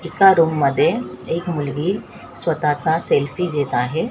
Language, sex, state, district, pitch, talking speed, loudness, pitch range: Marathi, female, Maharashtra, Mumbai Suburban, 155 Hz, 130 wpm, -19 LUFS, 140-170 Hz